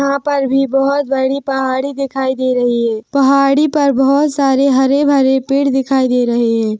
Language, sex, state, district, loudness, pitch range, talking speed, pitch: Hindi, female, Chhattisgarh, Rajnandgaon, -14 LUFS, 260-275 Hz, 185 wpm, 270 Hz